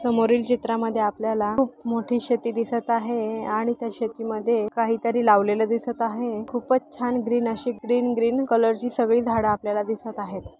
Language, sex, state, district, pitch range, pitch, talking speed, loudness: Marathi, female, Maharashtra, Pune, 220-240 Hz, 230 Hz, 160 wpm, -24 LUFS